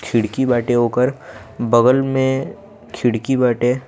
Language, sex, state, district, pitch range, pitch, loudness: Bhojpuri, male, Bihar, Muzaffarpur, 120-130 Hz, 125 Hz, -17 LUFS